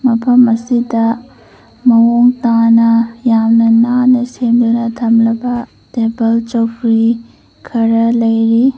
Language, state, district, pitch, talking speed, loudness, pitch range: Manipuri, Manipur, Imphal West, 230 Hz, 80 wpm, -12 LUFS, 230-240 Hz